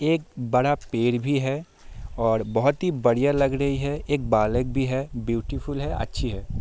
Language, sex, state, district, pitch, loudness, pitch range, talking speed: Hindi, male, Bihar, Saharsa, 130 Hz, -24 LUFS, 115-145 Hz, 180 wpm